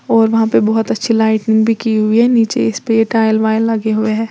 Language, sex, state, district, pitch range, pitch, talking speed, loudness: Hindi, female, Uttar Pradesh, Lalitpur, 220-225 Hz, 225 Hz, 250 wpm, -13 LUFS